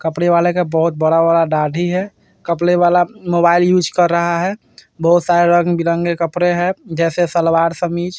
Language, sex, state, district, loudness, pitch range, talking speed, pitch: Hindi, male, Bihar, Vaishali, -15 LUFS, 165-175 Hz, 160 wpm, 175 Hz